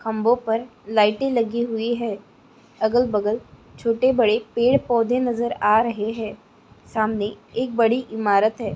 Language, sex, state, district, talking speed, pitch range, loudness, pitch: Hindi, female, Andhra Pradesh, Chittoor, 130 wpm, 215-240 Hz, -21 LUFS, 225 Hz